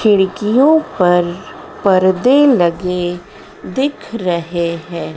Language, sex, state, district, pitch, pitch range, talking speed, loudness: Hindi, female, Madhya Pradesh, Dhar, 185 Hz, 175-230 Hz, 80 wpm, -14 LUFS